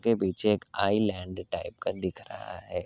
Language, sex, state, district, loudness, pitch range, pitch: Hindi, male, Uttar Pradesh, Hamirpur, -30 LUFS, 95-105 Hz, 100 Hz